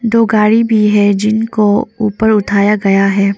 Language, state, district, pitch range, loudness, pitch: Hindi, Arunachal Pradesh, Papum Pare, 200-220 Hz, -12 LUFS, 210 Hz